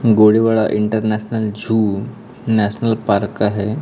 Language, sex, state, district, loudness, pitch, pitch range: Hindi, male, Maharashtra, Gondia, -17 LUFS, 110 Hz, 105-115 Hz